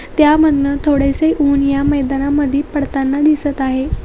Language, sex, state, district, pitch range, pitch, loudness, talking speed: Marathi, female, Maharashtra, Sindhudurg, 275-295 Hz, 280 Hz, -14 LUFS, 120 wpm